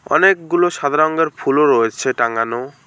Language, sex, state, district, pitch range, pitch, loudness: Bengali, male, West Bengal, Alipurduar, 120-165 Hz, 145 Hz, -16 LUFS